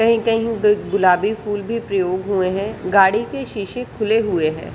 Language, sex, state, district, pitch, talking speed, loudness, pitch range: Hindi, female, Jharkhand, Sahebganj, 210 Hz, 175 wpm, -19 LUFS, 195-225 Hz